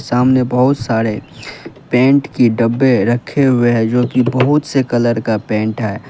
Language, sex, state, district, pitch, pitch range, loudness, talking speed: Hindi, male, Uttar Pradesh, Lalitpur, 125 Hz, 115-130 Hz, -14 LUFS, 165 wpm